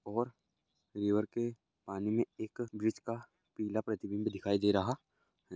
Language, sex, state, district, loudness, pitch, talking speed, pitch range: Hindi, male, Bihar, Gopalganj, -36 LUFS, 110 Hz, 150 wpm, 105-115 Hz